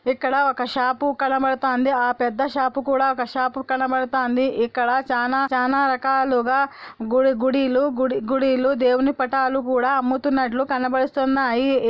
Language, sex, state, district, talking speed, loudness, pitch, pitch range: Telugu, female, Andhra Pradesh, Anantapur, 125 wpm, -21 LUFS, 260 Hz, 255-270 Hz